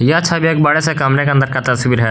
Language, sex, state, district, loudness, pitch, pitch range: Hindi, male, Jharkhand, Garhwa, -14 LUFS, 135 Hz, 125-160 Hz